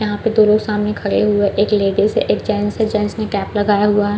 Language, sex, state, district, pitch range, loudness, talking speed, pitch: Hindi, female, Chhattisgarh, Balrampur, 205-210 Hz, -16 LUFS, 270 wpm, 210 Hz